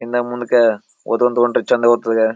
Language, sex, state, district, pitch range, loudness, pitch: Kannada, male, Karnataka, Bijapur, 115-120 Hz, -16 LUFS, 120 Hz